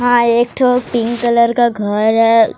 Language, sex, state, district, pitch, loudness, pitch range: Hindi, female, Odisha, Sambalpur, 235 Hz, -13 LUFS, 230-245 Hz